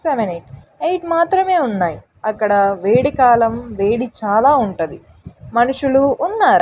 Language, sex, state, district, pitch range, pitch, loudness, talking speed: Telugu, female, Andhra Pradesh, Sri Satya Sai, 205-300 Hz, 240 Hz, -16 LUFS, 120 wpm